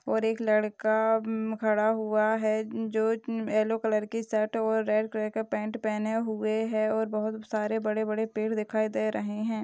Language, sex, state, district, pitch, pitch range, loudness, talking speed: Hindi, female, Uttar Pradesh, Ghazipur, 220 Hz, 215-220 Hz, -28 LUFS, 180 wpm